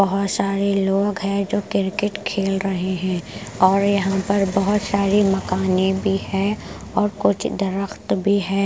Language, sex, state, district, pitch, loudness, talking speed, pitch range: Hindi, female, Punjab, Pathankot, 195 Hz, -20 LUFS, 160 wpm, 195-200 Hz